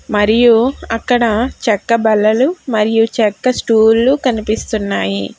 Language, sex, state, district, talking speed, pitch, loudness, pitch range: Telugu, female, Telangana, Hyderabad, 90 wpm, 225 Hz, -14 LUFS, 215-240 Hz